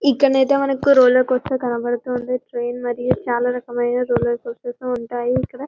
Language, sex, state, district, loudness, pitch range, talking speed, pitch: Telugu, female, Telangana, Karimnagar, -19 LUFS, 245-270 Hz, 150 wpm, 250 Hz